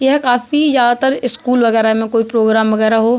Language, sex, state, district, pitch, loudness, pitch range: Hindi, male, Uttar Pradesh, Budaun, 240 Hz, -13 LUFS, 225-255 Hz